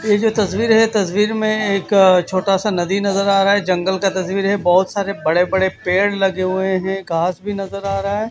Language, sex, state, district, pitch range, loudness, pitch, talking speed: Hindi, male, Chhattisgarh, Raipur, 185-205 Hz, -17 LUFS, 195 Hz, 230 wpm